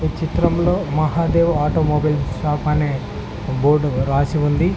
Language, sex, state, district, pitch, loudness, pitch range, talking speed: Telugu, male, Telangana, Mahabubabad, 150 Hz, -19 LUFS, 135-155 Hz, 115 wpm